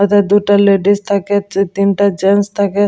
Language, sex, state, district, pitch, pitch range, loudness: Bengali, female, West Bengal, Jalpaiguri, 200 Hz, 200-205 Hz, -13 LUFS